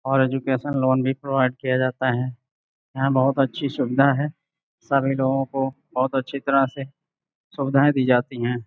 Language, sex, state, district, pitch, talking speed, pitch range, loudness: Hindi, male, Uttar Pradesh, Gorakhpur, 135 Hz, 165 wpm, 130-140 Hz, -22 LUFS